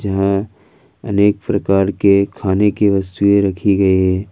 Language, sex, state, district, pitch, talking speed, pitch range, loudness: Hindi, male, Jharkhand, Ranchi, 100 Hz, 140 wpm, 95-100 Hz, -15 LUFS